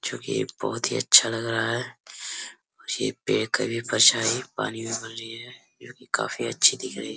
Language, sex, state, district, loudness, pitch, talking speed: Hindi, male, Jharkhand, Sahebganj, -23 LUFS, 115 Hz, 220 wpm